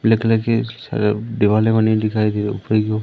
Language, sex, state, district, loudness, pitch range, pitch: Hindi, male, Madhya Pradesh, Umaria, -18 LUFS, 105-115 Hz, 110 Hz